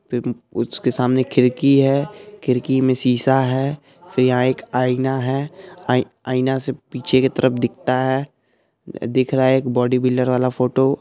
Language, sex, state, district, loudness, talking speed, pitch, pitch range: Hindi, male, Bihar, Araria, -19 LUFS, 170 wpm, 130 Hz, 125-135 Hz